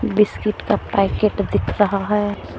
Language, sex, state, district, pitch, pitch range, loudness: Hindi, female, Jharkhand, Deoghar, 205 Hz, 200-210 Hz, -19 LUFS